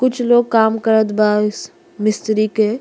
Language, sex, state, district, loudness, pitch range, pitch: Bhojpuri, female, Uttar Pradesh, Deoria, -16 LUFS, 215-230 Hz, 220 Hz